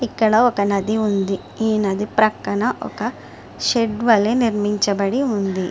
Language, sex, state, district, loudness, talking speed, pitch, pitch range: Telugu, female, Andhra Pradesh, Srikakulam, -19 LUFS, 135 wpm, 215 Hz, 200-225 Hz